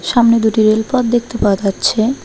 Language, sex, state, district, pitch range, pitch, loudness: Bengali, female, West Bengal, Alipurduar, 215-240 Hz, 220 Hz, -14 LUFS